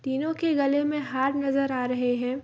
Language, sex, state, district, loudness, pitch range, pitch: Hindi, female, Bihar, Gopalganj, -26 LUFS, 260-290 Hz, 275 Hz